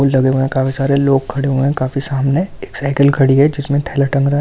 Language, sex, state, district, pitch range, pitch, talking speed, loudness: Hindi, male, Delhi, New Delhi, 135-140 Hz, 140 Hz, 285 wpm, -15 LUFS